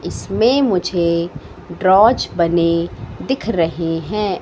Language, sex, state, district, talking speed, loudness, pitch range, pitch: Hindi, female, Madhya Pradesh, Katni, 95 wpm, -17 LUFS, 170-210 Hz, 175 Hz